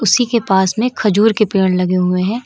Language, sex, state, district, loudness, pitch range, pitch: Hindi, female, Uttar Pradesh, Lucknow, -14 LUFS, 190-225 Hz, 210 Hz